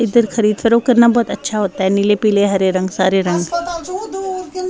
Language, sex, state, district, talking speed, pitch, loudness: Hindi, female, Bihar, West Champaran, 155 wpm, 220 Hz, -16 LUFS